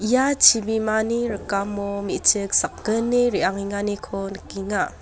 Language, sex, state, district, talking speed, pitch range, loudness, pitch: Garo, female, Meghalaya, West Garo Hills, 85 wpm, 200-225 Hz, -21 LUFS, 205 Hz